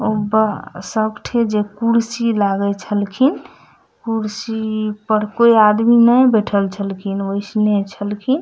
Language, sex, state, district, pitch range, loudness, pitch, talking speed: Maithili, female, Bihar, Madhepura, 205-230 Hz, -17 LUFS, 215 Hz, 120 wpm